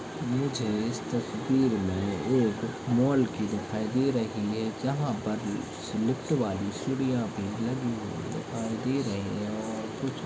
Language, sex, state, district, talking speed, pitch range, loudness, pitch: Hindi, male, Chhattisgarh, Balrampur, 145 wpm, 105-130 Hz, -30 LUFS, 110 Hz